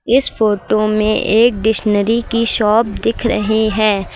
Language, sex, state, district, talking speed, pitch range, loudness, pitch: Hindi, female, Uttar Pradesh, Lucknow, 145 wpm, 210-230 Hz, -15 LUFS, 215 Hz